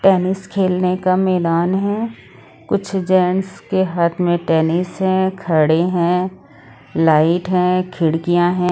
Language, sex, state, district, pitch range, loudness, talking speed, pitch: Hindi, female, Odisha, Sambalpur, 165-190 Hz, -17 LUFS, 125 wpm, 180 Hz